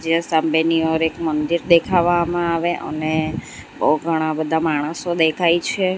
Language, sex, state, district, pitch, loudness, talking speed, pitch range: Gujarati, female, Gujarat, Valsad, 160 Hz, -19 LUFS, 140 wpm, 155-170 Hz